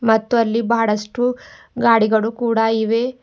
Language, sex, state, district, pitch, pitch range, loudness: Kannada, female, Karnataka, Bidar, 230 Hz, 220-235 Hz, -18 LUFS